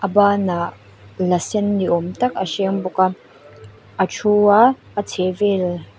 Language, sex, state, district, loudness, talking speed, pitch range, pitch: Mizo, female, Mizoram, Aizawl, -18 LUFS, 170 wpm, 170-205 Hz, 185 Hz